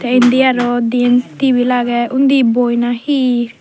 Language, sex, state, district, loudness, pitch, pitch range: Chakma, female, Tripura, Dhalai, -13 LUFS, 245 Hz, 240-260 Hz